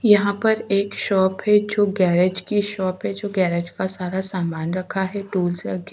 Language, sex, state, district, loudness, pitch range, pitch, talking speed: Hindi, female, Haryana, Charkhi Dadri, -21 LUFS, 185-205 Hz, 190 Hz, 200 wpm